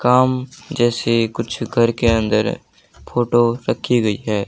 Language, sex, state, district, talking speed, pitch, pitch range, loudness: Hindi, male, Haryana, Jhajjar, 135 wpm, 120 Hz, 115-125 Hz, -18 LUFS